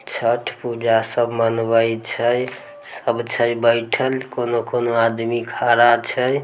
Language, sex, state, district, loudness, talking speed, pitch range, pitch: Maithili, male, Bihar, Samastipur, -19 LUFS, 110 wpm, 115-120 Hz, 120 Hz